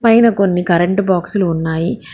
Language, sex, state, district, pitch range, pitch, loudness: Telugu, female, Telangana, Hyderabad, 170-200 Hz, 185 Hz, -15 LUFS